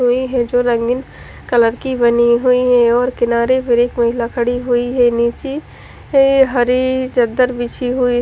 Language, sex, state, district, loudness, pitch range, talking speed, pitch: Hindi, female, Haryana, Charkhi Dadri, -15 LUFS, 240-255 Hz, 160 wpm, 245 Hz